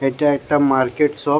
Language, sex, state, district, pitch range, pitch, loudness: Bengali, male, West Bengal, Jhargram, 135-150 Hz, 145 Hz, -17 LUFS